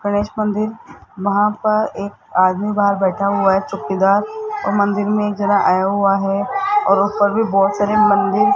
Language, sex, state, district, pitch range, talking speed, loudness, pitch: Hindi, male, Rajasthan, Jaipur, 195-210 Hz, 175 wpm, -17 LUFS, 205 Hz